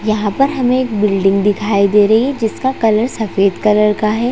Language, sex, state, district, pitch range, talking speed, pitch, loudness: Hindi, female, Chhattisgarh, Raigarh, 205-240 Hz, 210 wpm, 215 Hz, -14 LUFS